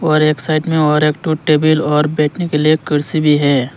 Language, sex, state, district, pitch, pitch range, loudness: Hindi, male, Arunachal Pradesh, Lower Dibang Valley, 155 Hz, 150-155 Hz, -14 LUFS